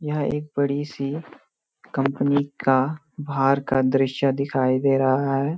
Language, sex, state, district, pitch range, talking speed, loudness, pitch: Hindi, male, Uttarakhand, Uttarkashi, 135-145 Hz, 130 wpm, -22 LUFS, 140 Hz